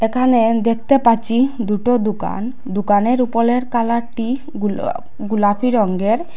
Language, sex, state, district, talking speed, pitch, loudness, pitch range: Bengali, female, Assam, Hailakandi, 105 wpm, 230 Hz, -17 LUFS, 220-250 Hz